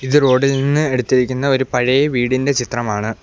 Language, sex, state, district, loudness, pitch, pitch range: Malayalam, male, Kerala, Kollam, -16 LUFS, 130 Hz, 125-140 Hz